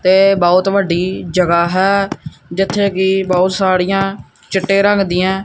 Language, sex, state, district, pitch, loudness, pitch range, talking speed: Punjabi, male, Punjab, Kapurthala, 190 Hz, -14 LUFS, 185-195 Hz, 130 wpm